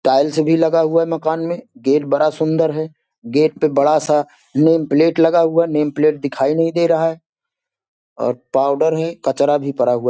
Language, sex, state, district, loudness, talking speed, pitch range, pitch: Hindi, male, Bihar, Sitamarhi, -17 LUFS, 200 wpm, 145-165 Hz, 155 Hz